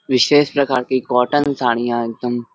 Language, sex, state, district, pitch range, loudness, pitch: Hindi, male, Uttar Pradesh, Varanasi, 120-140 Hz, -17 LUFS, 125 Hz